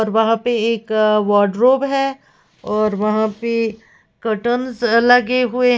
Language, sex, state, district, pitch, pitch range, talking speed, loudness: Hindi, female, Uttar Pradesh, Lalitpur, 230 Hz, 215-245 Hz, 145 wpm, -17 LUFS